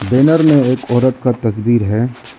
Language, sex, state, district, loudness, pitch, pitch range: Hindi, male, Arunachal Pradesh, Lower Dibang Valley, -13 LUFS, 125 Hz, 115-130 Hz